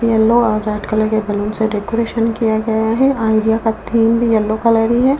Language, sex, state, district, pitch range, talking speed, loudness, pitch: Hindi, female, Delhi, New Delhi, 220-230 Hz, 220 wpm, -15 LUFS, 225 Hz